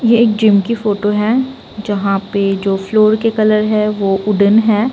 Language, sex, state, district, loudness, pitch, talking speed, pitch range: Hindi, female, Bihar, Saran, -14 LUFS, 210 Hz, 195 wpm, 200-220 Hz